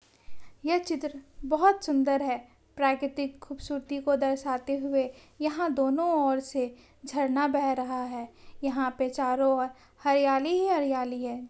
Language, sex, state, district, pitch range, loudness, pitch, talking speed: Hindi, female, West Bengal, Purulia, 260-290 Hz, -28 LUFS, 275 Hz, 135 wpm